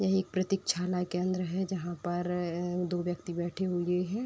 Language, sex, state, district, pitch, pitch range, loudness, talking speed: Hindi, female, Uttar Pradesh, Deoria, 180 Hz, 175-185 Hz, -32 LUFS, 170 wpm